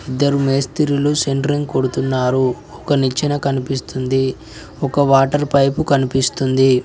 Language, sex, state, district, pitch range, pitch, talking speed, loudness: Telugu, male, Telangana, Mahabubabad, 130-145 Hz, 135 Hz, 90 wpm, -17 LUFS